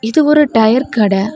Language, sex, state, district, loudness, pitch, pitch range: Tamil, female, Tamil Nadu, Kanyakumari, -12 LUFS, 225 Hz, 215-295 Hz